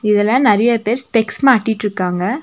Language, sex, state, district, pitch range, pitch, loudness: Tamil, female, Tamil Nadu, Nilgiris, 210-250 Hz, 225 Hz, -15 LUFS